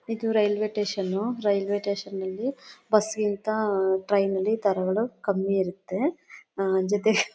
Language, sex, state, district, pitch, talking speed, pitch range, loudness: Kannada, female, Karnataka, Chamarajanagar, 205 Hz, 115 wpm, 195-215 Hz, -26 LUFS